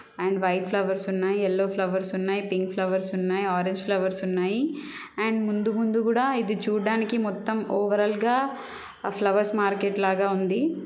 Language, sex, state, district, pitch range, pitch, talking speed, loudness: Telugu, female, Andhra Pradesh, Chittoor, 190-220 Hz, 200 Hz, 150 wpm, -25 LUFS